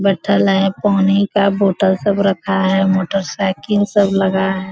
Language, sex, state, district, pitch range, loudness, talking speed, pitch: Hindi, female, Bihar, Bhagalpur, 190-200 Hz, -15 LUFS, 165 wpm, 195 Hz